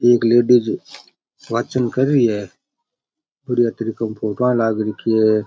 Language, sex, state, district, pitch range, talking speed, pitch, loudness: Rajasthani, male, Rajasthan, Churu, 110-125 Hz, 130 wpm, 120 Hz, -18 LUFS